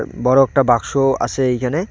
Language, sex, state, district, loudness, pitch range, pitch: Bengali, male, West Bengal, Cooch Behar, -16 LUFS, 125-135 Hz, 135 Hz